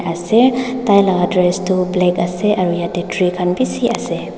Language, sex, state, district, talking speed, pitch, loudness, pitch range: Nagamese, female, Nagaland, Dimapur, 165 wpm, 180 Hz, -16 LUFS, 180-205 Hz